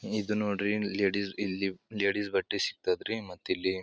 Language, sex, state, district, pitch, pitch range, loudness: Kannada, male, Karnataka, Bijapur, 100 Hz, 95-105 Hz, -31 LUFS